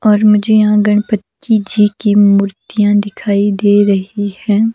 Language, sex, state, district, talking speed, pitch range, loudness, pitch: Hindi, female, Himachal Pradesh, Shimla, 140 wpm, 205-215 Hz, -12 LUFS, 205 Hz